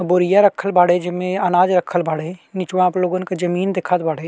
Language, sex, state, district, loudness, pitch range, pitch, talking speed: Bhojpuri, male, Uttar Pradesh, Ghazipur, -18 LUFS, 175-185 Hz, 180 Hz, 170 wpm